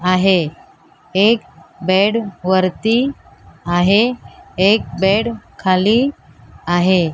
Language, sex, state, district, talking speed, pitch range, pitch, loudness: Marathi, female, Maharashtra, Mumbai Suburban, 75 wpm, 180-220 Hz, 190 Hz, -16 LUFS